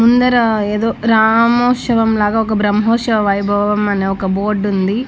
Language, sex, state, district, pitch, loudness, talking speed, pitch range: Telugu, female, Andhra Pradesh, Annamaya, 220 Hz, -14 LUFS, 130 wpm, 205-230 Hz